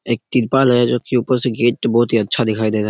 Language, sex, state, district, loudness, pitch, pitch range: Hindi, male, Chhattisgarh, Raigarh, -16 LUFS, 120 Hz, 110-125 Hz